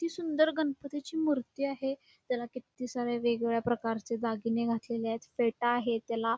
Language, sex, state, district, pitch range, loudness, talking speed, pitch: Marathi, female, Karnataka, Belgaum, 230-280 Hz, -32 LUFS, 150 wpm, 240 Hz